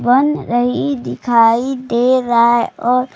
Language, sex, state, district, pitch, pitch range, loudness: Hindi, female, Bihar, Bhagalpur, 240 Hz, 235-255 Hz, -15 LUFS